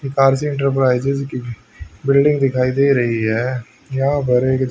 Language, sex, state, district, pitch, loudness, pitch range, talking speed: Hindi, male, Haryana, Charkhi Dadri, 135 Hz, -17 LUFS, 125-140 Hz, 155 wpm